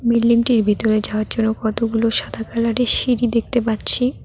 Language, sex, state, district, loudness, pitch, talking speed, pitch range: Bengali, female, West Bengal, Cooch Behar, -18 LUFS, 230 Hz, 140 wpm, 220-235 Hz